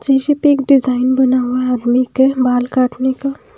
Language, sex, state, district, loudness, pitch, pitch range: Hindi, female, Himachal Pradesh, Shimla, -14 LUFS, 260 Hz, 250-275 Hz